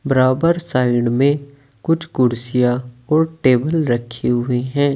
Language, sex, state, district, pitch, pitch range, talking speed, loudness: Hindi, male, Uttar Pradesh, Saharanpur, 130 Hz, 125-145 Hz, 120 wpm, -18 LUFS